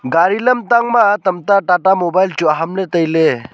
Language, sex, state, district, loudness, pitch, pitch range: Wancho, male, Arunachal Pradesh, Longding, -14 LUFS, 185 Hz, 165-200 Hz